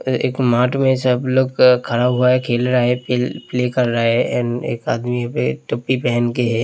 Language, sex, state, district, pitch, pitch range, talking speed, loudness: Hindi, male, Uttar Pradesh, Hamirpur, 125 Hz, 120-125 Hz, 225 wpm, -17 LUFS